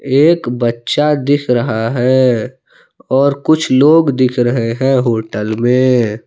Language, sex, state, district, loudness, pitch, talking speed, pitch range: Hindi, male, Jharkhand, Palamu, -13 LUFS, 125 Hz, 125 wpm, 120-140 Hz